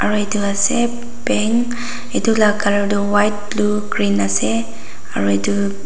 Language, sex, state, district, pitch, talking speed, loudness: Nagamese, female, Nagaland, Dimapur, 205 Hz, 135 wpm, -18 LUFS